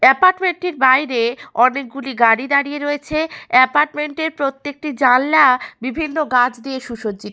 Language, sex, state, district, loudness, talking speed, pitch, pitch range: Bengali, female, West Bengal, Malda, -17 LUFS, 125 wpm, 275 Hz, 250-305 Hz